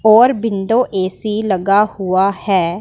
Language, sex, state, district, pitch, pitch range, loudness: Hindi, female, Punjab, Pathankot, 200 Hz, 190-220 Hz, -15 LUFS